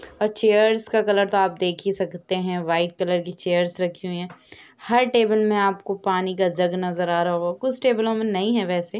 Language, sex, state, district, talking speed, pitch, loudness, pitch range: Hindi, female, Uttar Pradesh, Jalaun, 225 wpm, 190 Hz, -22 LUFS, 180-215 Hz